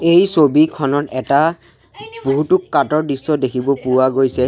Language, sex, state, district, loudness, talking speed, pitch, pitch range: Assamese, male, Assam, Sonitpur, -16 LUFS, 135 wpm, 140 Hz, 130-155 Hz